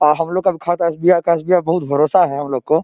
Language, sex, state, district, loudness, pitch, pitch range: Maithili, male, Bihar, Samastipur, -16 LUFS, 170 Hz, 150-180 Hz